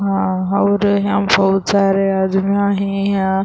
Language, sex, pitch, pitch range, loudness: Urdu, female, 195 Hz, 195-200 Hz, -16 LUFS